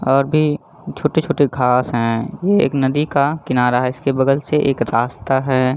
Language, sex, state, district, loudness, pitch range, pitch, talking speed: Hindi, male, Jharkhand, Jamtara, -17 LUFS, 125-150 Hz, 135 Hz, 195 wpm